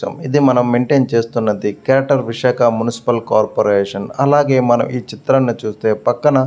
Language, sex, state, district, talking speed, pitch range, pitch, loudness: Telugu, male, Andhra Pradesh, Visakhapatnam, 140 wpm, 115-135 Hz, 120 Hz, -15 LUFS